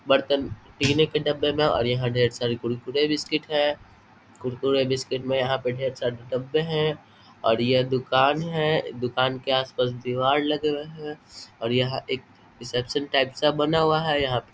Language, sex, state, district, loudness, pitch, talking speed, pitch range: Hindi, male, Bihar, Vaishali, -24 LUFS, 130 Hz, 180 wpm, 125-150 Hz